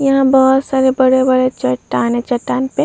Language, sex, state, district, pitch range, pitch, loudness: Hindi, female, Uttar Pradesh, Muzaffarnagar, 255-265 Hz, 260 Hz, -14 LUFS